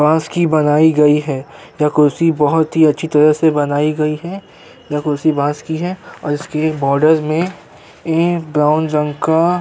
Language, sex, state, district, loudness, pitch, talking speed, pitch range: Hindi, male, Uttar Pradesh, Jyotiba Phule Nagar, -15 LUFS, 155 Hz, 170 wpm, 150-160 Hz